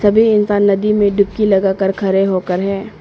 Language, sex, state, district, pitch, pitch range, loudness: Hindi, female, Arunachal Pradesh, Papum Pare, 200 Hz, 195-210 Hz, -14 LUFS